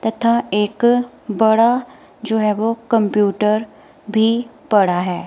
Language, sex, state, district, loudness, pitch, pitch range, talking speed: Hindi, female, Himachal Pradesh, Shimla, -17 LUFS, 220 Hz, 210-235 Hz, 115 wpm